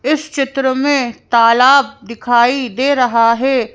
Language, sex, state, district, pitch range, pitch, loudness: Hindi, female, Madhya Pradesh, Bhopal, 235-275 Hz, 255 Hz, -13 LUFS